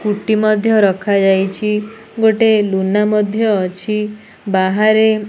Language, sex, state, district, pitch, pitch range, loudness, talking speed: Odia, female, Odisha, Nuapada, 210 Hz, 200-215 Hz, -15 LUFS, 90 wpm